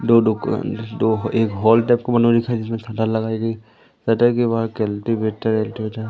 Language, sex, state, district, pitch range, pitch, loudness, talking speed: Hindi, male, Madhya Pradesh, Umaria, 110-115 Hz, 110 Hz, -19 LUFS, 155 wpm